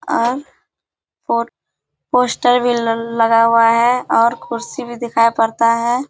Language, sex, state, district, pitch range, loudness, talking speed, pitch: Hindi, female, Bihar, Kishanganj, 230-245 Hz, -15 LUFS, 140 wpm, 235 Hz